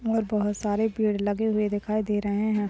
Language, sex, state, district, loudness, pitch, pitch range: Hindi, male, Maharashtra, Dhule, -26 LUFS, 210 Hz, 205-215 Hz